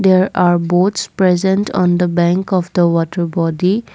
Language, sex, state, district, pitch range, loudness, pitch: English, female, Assam, Kamrup Metropolitan, 175-190 Hz, -15 LUFS, 180 Hz